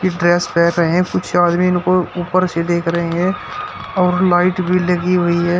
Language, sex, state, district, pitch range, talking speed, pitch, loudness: Hindi, male, Uttar Pradesh, Shamli, 170-180 Hz, 195 wpm, 175 Hz, -16 LUFS